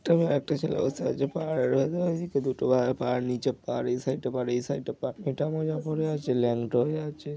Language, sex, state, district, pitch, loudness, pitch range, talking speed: Bengali, male, West Bengal, North 24 Parganas, 140 Hz, -28 LUFS, 125-155 Hz, 205 wpm